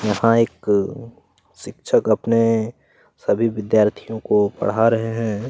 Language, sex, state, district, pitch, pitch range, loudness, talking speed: Hindi, male, Chhattisgarh, Kabirdham, 110 Hz, 105-115 Hz, -19 LUFS, 110 wpm